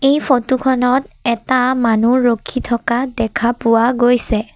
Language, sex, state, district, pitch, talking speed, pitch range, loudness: Assamese, female, Assam, Sonitpur, 245 Hz, 130 wpm, 235-260 Hz, -15 LUFS